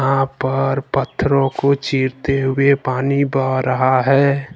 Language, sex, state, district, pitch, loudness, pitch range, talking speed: Hindi, male, Jharkhand, Ranchi, 135 Hz, -17 LUFS, 130-140 Hz, 130 wpm